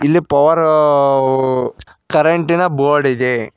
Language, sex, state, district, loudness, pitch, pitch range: Kannada, male, Karnataka, Koppal, -14 LUFS, 145 Hz, 130-160 Hz